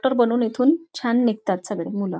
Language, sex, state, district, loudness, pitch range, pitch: Marathi, female, Maharashtra, Nagpur, -22 LUFS, 205-255 Hz, 235 Hz